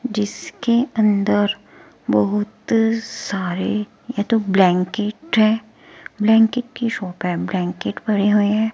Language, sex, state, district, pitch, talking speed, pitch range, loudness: Hindi, female, Himachal Pradesh, Shimla, 210 Hz, 110 wpm, 200-225 Hz, -19 LUFS